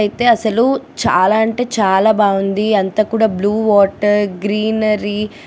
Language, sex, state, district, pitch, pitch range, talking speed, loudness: Telugu, female, Andhra Pradesh, Krishna, 210 Hz, 205-220 Hz, 130 wpm, -15 LUFS